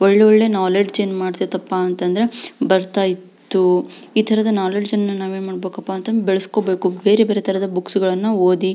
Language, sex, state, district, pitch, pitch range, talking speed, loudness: Kannada, female, Karnataka, Belgaum, 190 Hz, 185-210 Hz, 135 wpm, -18 LUFS